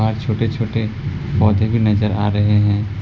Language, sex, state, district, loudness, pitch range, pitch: Hindi, male, West Bengal, Alipurduar, -18 LUFS, 105-115 Hz, 110 Hz